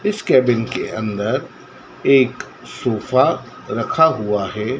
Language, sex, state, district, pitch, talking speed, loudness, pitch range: Hindi, male, Madhya Pradesh, Dhar, 130 Hz, 110 wpm, -18 LUFS, 110-135 Hz